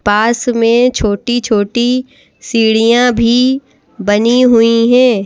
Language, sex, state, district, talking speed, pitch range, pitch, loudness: Hindi, female, Madhya Pradesh, Bhopal, 90 wpm, 225-245 Hz, 235 Hz, -11 LUFS